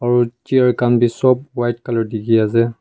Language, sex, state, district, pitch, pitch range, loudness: Nagamese, male, Nagaland, Kohima, 120 Hz, 115-125 Hz, -17 LUFS